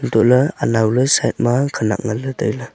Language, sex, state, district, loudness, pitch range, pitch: Wancho, male, Arunachal Pradesh, Longding, -17 LUFS, 110-135 Hz, 120 Hz